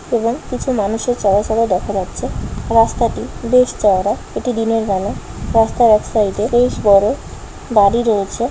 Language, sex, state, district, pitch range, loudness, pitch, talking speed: Bengali, female, West Bengal, Malda, 205-235 Hz, -16 LUFS, 225 Hz, 135 wpm